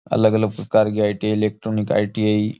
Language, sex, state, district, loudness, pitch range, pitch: Rajasthani, male, Rajasthan, Churu, -20 LUFS, 105-110 Hz, 105 Hz